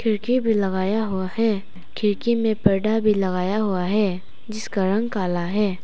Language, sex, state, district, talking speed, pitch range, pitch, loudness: Hindi, female, Arunachal Pradesh, Papum Pare, 165 wpm, 190-220 Hz, 205 Hz, -22 LUFS